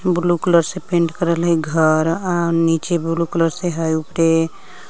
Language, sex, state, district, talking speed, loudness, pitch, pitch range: Magahi, female, Jharkhand, Palamu, 170 wpm, -18 LUFS, 170 Hz, 165-175 Hz